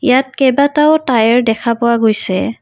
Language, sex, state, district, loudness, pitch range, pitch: Assamese, female, Assam, Kamrup Metropolitan, -12 LUFS, 225-270 Hz, 240 Hz